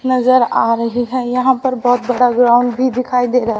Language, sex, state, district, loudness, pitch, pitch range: Hindi, female, Haryana, Rohtak, -14 LUFS, 250 Hz, 245-255 Hz